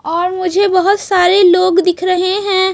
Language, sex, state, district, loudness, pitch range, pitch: Hindi, female, Chhattisgarh, Raipur, -12 LUFS, 360-385 Hz, 370 Hz